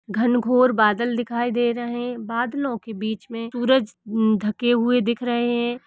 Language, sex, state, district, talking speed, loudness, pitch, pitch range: Hindi, female, Uttar Pradesh, Hamirpur, 165 wpm, -22 LUFS, 240 Hz, 225-245 Hz